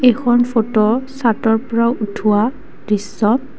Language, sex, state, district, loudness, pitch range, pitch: Assamese, female, Assam, Kamrup Metropolitan, -16 LUFS, 215-245 Hz, 230 Hz